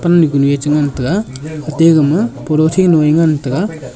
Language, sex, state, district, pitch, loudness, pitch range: Wancho, male, Arunachal Pradesh, Longding, 155 Hz, -13 LUFS, 145-165 Hz